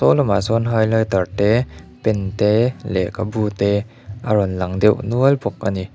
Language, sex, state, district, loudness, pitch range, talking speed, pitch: Mizo, male, Mizoram, Aizawl, -18 LUFS, 100-115 Hz, 170 wpm, 105 Hz